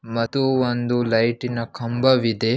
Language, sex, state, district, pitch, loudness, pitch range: Kannada, male, Karnataka, Belgaum, 120 Hz, -21 LUFS, 115-125 Hz